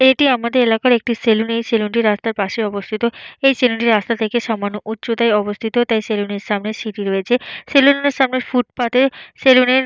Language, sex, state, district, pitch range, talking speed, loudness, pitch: Bengali, female, Jharkhand, Jamtara, 215-250 Hz, 170 wpm, -17 LUFS, 230 Hz